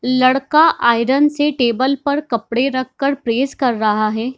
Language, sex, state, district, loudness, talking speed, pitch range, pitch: Hindi, female, Bihar, Darbhanga, -16 LUFS, 165 wpm, 235-275 Hz, 260 Hz